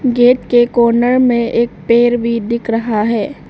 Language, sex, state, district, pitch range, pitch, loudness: Hindi, female, Arunachal Pradesh, Lower Dibang Valley, 230-240 Hz, 235 Hz, -13 LUFS